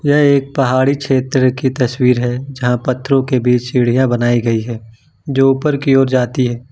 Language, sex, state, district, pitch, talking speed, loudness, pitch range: Hindi, male, Jharkhand, Ranchi, 130 Hz, 190 wpm, -14 LUFS, 125-135 Hz